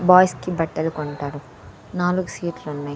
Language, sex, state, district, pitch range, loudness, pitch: Telugu, female, Andhra Pradesh, Sri Satya Sai, 145-180 Hz, -22 LUFS, 160 Hz